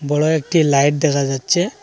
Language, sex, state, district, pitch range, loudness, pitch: Bengali, male, Assam, Hailakandi, 140-160 Hz, -16 LUFS, 150 Hz